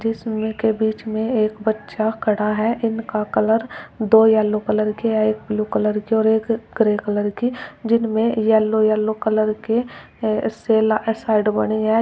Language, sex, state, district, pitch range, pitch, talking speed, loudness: Hindi, female, Uttar Pradesh, Shamli, 215-225 Hz, 220 Hz, 155 wpm, -19 LUFS